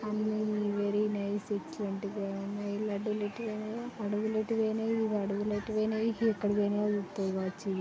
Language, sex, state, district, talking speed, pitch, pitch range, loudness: Telugu, female, Andhra Pradesh, Srikakulam, 55 wpm, 210 Hz, 205-215 Hz, -33 LUFS